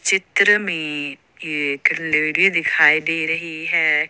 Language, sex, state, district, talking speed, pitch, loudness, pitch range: Hindi, female, Jharkhand, Ranchi, 115 wpm, 160 Hz, -17 LUFS, 150-170 Hz